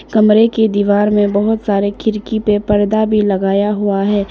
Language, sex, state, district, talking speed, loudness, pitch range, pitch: Hindi, female, Arunachal Pradesh, Lower Dibang Valley, 180 wpm, -14 LUFS, 205-215 Hz, 210 Hz